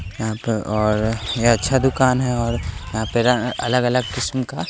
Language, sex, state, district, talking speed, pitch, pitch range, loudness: Hindi, male, Bihar, West Champaran, 180 wpm, 120 Hz, 110-125 Hz, -20 LUFS